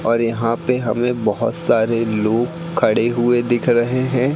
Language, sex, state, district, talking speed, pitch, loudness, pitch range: Hindi, male, Madhya Pradesh, Katni, 165 wpm, 120 Hz, -18 LUFS, 115-125 Hz